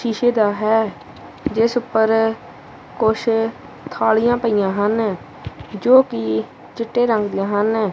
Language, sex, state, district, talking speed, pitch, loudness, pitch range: Punjabi, female, Punjab, Kapurthala, 115 wpm, 220 Hz, -18 LUFS, 205-230 Hz